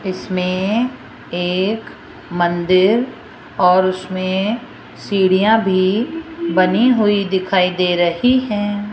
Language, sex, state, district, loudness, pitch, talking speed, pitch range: Hindi, female, Rajasthan, Jaipur, -17 LUFS, 190 Hz, 85 wpm, 185-220 Hz